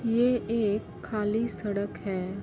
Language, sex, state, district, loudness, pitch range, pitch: Hindi, female, Uttar Pradesh, Varanasi, -29 LUFS, 200-230 Hz, 215 Hz